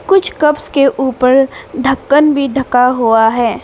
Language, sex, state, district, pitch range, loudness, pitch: Hindi, female, Arunachal Pradesh, Papum Pare, 250-290 Hz, -12 LUFS, 270 Hz